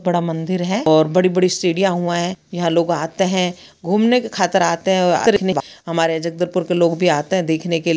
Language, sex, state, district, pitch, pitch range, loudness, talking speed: Hindi, female, Chhattisgarh, Bastar, 175 Hz, 170-185 Hz, -18 LUFS, 195 wpm